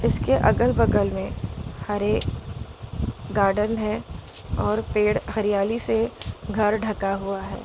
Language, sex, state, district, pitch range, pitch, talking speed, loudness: Hindi, female, Gujarat, Valsad, 175-215 Hz, 205 Hz, 120 wpm, -23 LUFS